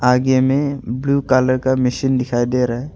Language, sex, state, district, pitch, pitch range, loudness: Hindi, male, Arunachal Pradesh, Longding, 130 Hz, 125-135 Hz, -17 LUFS